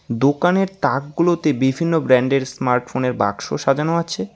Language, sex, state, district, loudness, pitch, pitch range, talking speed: Bengali, male, West Bengal, Alipurduar, -19 LUFS, 140 Hz, 130-165 Hz, 110 wpm